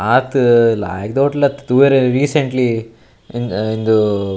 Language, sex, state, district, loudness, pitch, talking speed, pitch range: Tulu, male, Karnataka, Dakshina Kannada, -15 LUFS, 120 Hz, 125 wpm, 110-135 Hz